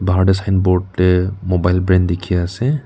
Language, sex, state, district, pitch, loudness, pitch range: Nagamese, male, Nagaland, Kohima, 90 Hz, -16 LUFS, 90-95 Hz